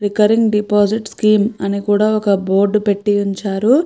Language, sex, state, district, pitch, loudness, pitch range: Telugu, female, Andhra Pradesh, Chittoor, 205 Hz, -15 LUFS, 200-215 Hz